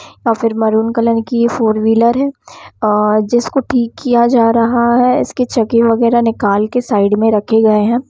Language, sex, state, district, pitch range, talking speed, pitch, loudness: Hindi, female, Bihar, Samastipur, 220-240 Hz, 200 wpm, 230 Hz, -13 LUFS